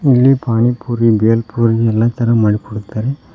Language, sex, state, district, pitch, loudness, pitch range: Kannada, male, Karnataka, Koppal, 115 Hz, -14 LUFS, 110-125 Hz